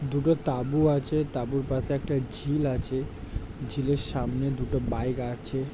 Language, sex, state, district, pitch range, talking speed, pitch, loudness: Bengali, male, West Bengal, Jhargram, 125-140 Hz, 135 wpm, 135 Hz, -28 LUFS